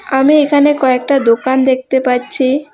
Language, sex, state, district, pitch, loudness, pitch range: Bengali, female, West Bengal, Alipurduar, 265 Hz, -12 LUFS, 260-290 Hz